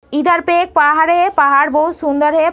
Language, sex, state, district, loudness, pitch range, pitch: Hindi, female, Uttar Pradesh, Etah, -13 LUFS, 295-345 Hz, 315 Hz